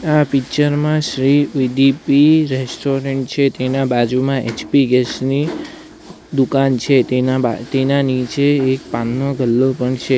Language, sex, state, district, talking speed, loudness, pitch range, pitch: Gujarati, male, Gujarat, Valsad, 130 wpm, -16 LUFS, 130-140 Hz, 135 Hz